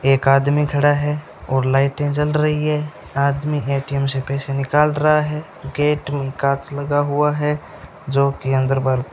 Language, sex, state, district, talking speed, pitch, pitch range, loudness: Hindi, male, Rajasthan, Bikaner, 170 wpm, 145 Hz, 135-150 Hz, -19 LUFS